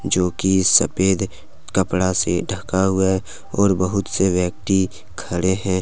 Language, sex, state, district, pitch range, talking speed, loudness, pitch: Hindi, male, Jharkhand, Deoghar, 90-95 Hz, 135 wpm, -19 LUFS, 95 Hz